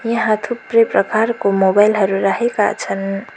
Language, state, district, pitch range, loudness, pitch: Nepali, West Bengal, Darjeeling, 195-230 Hz, -16 LUFS, 215 Hz